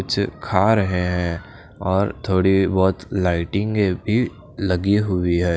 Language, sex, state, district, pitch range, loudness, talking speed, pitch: Hindi, male, Chandigarh, Chandigarh, 90-100 Hz, -20 LUFS, 130 wpm, 95 Hz